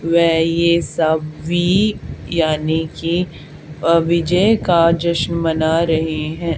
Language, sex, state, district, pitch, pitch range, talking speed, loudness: Hindi, female, Haryana, Charkhi Dadri, 165 Hz, 160-170 Hz, 110 wpm, -17 LUFS